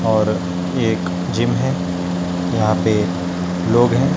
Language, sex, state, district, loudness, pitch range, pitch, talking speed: Hindi, male, Chhattisgarh, Raipur, -19 LUFS, 90-95 Hz, 90 Hz, 115 wpm